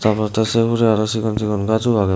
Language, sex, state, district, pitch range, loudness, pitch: Chakma, male, Tripura, Dhalai, 105-115 Hz, -18 LUFS, 110 Hz